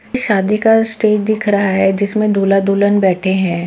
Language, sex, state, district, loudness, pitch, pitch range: Hindi, female, Uttar Pradesh, Muzaffarnagar, -14 LUFS, 200 Hz, 195-215 Hz